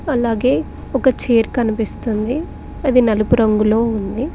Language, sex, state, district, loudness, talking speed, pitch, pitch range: Telugu, female, Telangana, Mahabubabad, -17 LUFS, 110 wpm, 230 Hz, 220-255 Hz